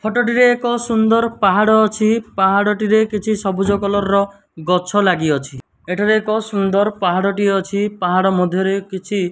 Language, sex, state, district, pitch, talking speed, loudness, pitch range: Odia, male, Odisha, Malkangiri, 200 Hz, 155 wpm, -16 LUFS, 190-215 Hz